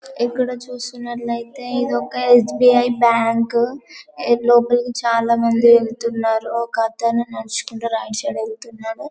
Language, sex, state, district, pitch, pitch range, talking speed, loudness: Telugu, female, Telangana, Karimnagar, 235 Hz, 230-245 Hz, 110 wpm, -18 LUFS